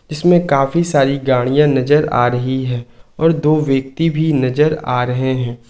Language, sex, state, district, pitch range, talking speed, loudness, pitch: Hindi, male, Jharkhand, Ranchi, 125-155 Hz, 170 wpm, -15 LUFS, 135 Hz